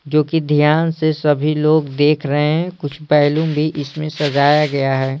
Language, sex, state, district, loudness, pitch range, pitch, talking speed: Hindi, male, Bihar, Patna, -16 LUFS, 145-155 Hz, 150 Hz, 185 wpm